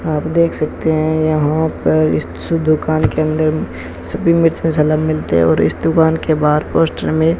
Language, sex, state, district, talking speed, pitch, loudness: Hindi, male, Rajasthan, Bikaner, 185 wpm, 155 Hz, -15 LUFS